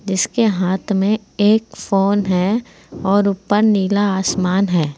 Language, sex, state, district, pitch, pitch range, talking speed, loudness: Hindi, female, Uttar Pradesh, Saharanpur, 200 Hz, 190-210 Hz, 130 wpm, -17 LUFS